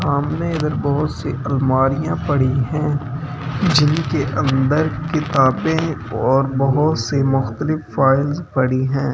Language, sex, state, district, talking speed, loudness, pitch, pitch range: Hindi, male, Delhi, New Delhi, 120 wpm, -18 LUFS, 140 Hz, 135-155 Hz